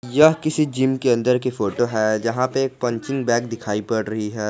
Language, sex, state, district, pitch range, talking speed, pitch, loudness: Hindi, male, Jharkhand, Garhwa, 110-130 Hz, 225 wpm, 120 Hz, -21 LUFS